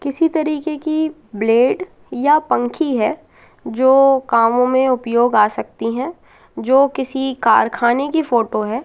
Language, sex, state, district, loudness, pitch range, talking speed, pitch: Hindi, female, Madhya Pradesh, Katni, -16 LUFS, 235-295 Hz, 135 wpm, 260 Hz